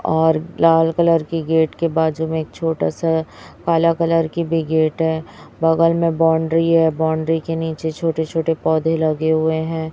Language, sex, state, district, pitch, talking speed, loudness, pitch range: Hindi, female, Chhattisgarh, Raipur, 160 Hz, 175 wpm, -18 LUFS, 160-165 Hz